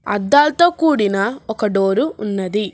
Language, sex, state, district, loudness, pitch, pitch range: Telugu, female, Telangana, Hyderabad, -16 LUFS, 210 Hz, 200-285 Hz